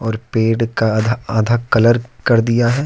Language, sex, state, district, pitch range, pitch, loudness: Hindi, male, Jharkhand, Deoghar, 110-120 Hz, 115 Hz, -16 LUFS